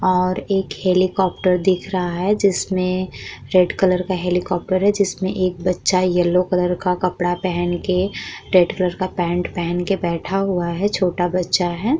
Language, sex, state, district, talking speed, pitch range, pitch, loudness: Hindi, female, Uttar Pradesh, Muzaffarnagar, 165 wpm, 180-185 Hz, 185 Hz, -19 LUFS